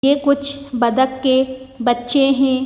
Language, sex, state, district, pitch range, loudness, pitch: Hindi, female, Madhya Pradesh, Bhopal, 260-280 Hz, -17 LUFS, 265 Hz